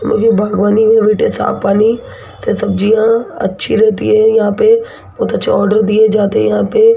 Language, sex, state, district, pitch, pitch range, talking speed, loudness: Hindi, female, Rajasthan, Jaipur, 215 Hz, 205-225 Hz, 180 wpm, -12 LUFS